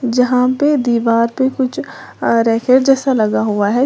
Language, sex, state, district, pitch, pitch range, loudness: Hindi, female, Uttar Pradesh, Lalitpur, 250 Hz, 230-260 Hz, -14 LUFS